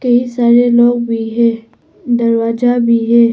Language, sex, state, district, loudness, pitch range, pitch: Hindi, female, Arunachal Pradesh, Papum Pare, -12 LUFS, 230-240 Hz, 235 Hz